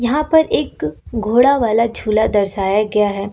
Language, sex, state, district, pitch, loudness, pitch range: Hindi, female, Uttar Pradesh, Lucknow, 220 Hz, -16 LUFS, 210-240 Hz